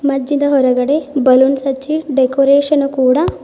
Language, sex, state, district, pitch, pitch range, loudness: Kannada, female, Karnataka, Bidar, 275 Hz, 265-285 Hz, -13 LUFS